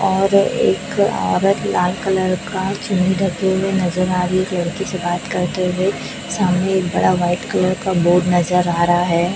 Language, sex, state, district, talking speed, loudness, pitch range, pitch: Hindi, female, Chhattisgarh, Raipur, 190 wpm, -17 LUFS, 180-190 Hz, 185 Hz